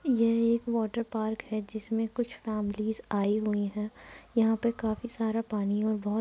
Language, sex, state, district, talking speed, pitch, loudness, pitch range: Hindi, female, Uttar Pradesh, Muzaffarnagar, 185 wpm, 220 Hz, -30 LUFS, 210-230 Hz